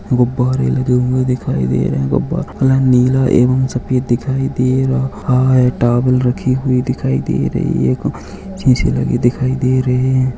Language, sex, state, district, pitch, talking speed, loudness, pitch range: Hindi, male, Chhattisgarh, Rajnandgaon, 125 Hz, 160 wpm, -15 LUFS, 125-130 Hz